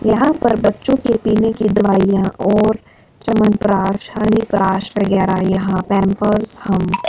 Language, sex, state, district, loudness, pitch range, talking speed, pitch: Hindi, female, Himachal Pradesh, Shimla, -16 LUFS, 195-220 Hz, 125 wpm, 210 Hz